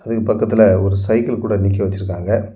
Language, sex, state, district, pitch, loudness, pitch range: Tamil, male, Tamil Nadu, Kanyakumari, 105 Hz, -16 LUFS, 100-115 Hz